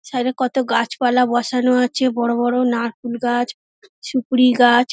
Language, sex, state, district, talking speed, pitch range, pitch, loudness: Bengali, female, West Bengal, Dakshin Dinajpur, 135 wpm, 240-255 Hz, 250 Hz, -18 LUFS